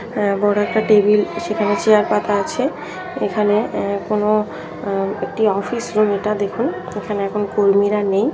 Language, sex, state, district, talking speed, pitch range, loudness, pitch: Bengali, female, West Bengal, Jhargram, 135 wpm, 200-215 Hz, -18 LUFS, 210 Hz